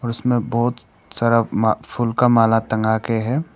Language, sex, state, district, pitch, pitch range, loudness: Hindi, male, Arunachal Pradesh, Papum Pare, 115 Hz, 110-120 Hz, -19 LUFS